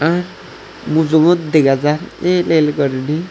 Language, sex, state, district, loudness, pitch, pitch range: Chakma, male, Tripura, Unakoti, -15 LUFS, 160 Hz, 150-170 Hz